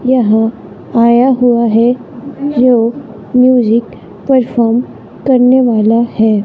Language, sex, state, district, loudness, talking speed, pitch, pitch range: Hindi, female, Bihar, West Champaran, -11 LUFS, 95 wpm, 240 Hz, 225-255 Hz